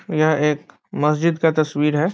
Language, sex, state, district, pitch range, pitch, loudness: Hindi, male, Bihar, Muzaffarpur, 150-160 Hz, 155 Hz, -19 LUFS